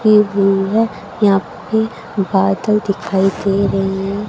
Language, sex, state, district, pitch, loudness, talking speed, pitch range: Hindi, female, Haryana, Charkhi Dadri, 200 Hz, -16 LUFS, 125 wpm, 195-210 Hz